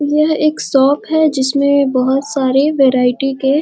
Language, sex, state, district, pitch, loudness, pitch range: Hindi, female, Bihar, Muzaffarpur, 280 Hz, -13 LUFS, 265-300 Hz